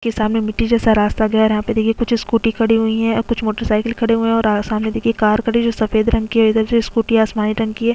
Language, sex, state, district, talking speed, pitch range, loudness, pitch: Hindi, female, Chhattisgarh, Sukma, 315 wpm, 220-230 Hz, -16 LUFS, 225 Hz